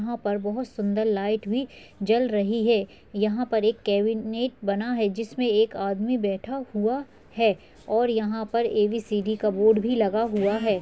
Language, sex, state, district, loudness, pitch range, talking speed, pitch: Hindi, female, Uttar Pradesh, Hamirpur, -25 LUFS, 210-230 Hz, 170 wpm, 220 Hz